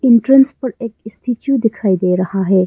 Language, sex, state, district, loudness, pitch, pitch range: Hindi, female, Arunachal Pradesh, Longding, -15 LUFS, 230 Hz, 195-255 Hz